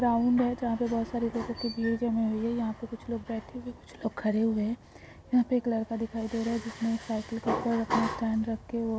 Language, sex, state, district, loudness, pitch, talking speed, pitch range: Hindi, female, Maharashtra, Dhule, -30 LUFS, 230 Hz, 265 wpm, 225-235 Hz